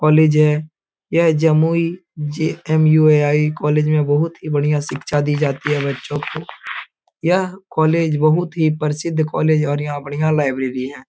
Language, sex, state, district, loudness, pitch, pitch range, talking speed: Hindi, male, Bihar, Jamui, -17 LUFS, 155 Hz, 145-160 Hz, 150 wpm